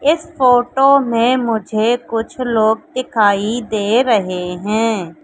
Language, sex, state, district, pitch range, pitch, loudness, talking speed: Hindi, female, Madhya Pradesh, Katni, 215-250 Hz, 225 Hz, -15 LUFS, 115 wpm